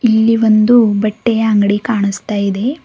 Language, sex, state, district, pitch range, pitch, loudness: Kannada, female, Karnataka, Bidar, 205-230 Hz, 220 Hz, -13 LUFS